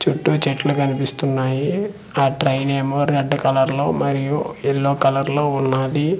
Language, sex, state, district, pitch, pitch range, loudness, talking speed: Telugu, male, Andhra Pradesh, Manyam, 140 Hz, 135-145 Hz, -19 LUFS, 115 wpm